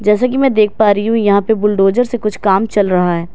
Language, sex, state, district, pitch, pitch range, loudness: Hindi, female, Bihar, Katihar, 210 Hz, 195-220 Hz, -13 LUFS